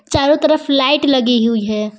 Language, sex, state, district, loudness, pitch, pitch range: Hindi, female, Jharkhand, Palamu, -14 LUFS, 265 Hz, 230-295 Hz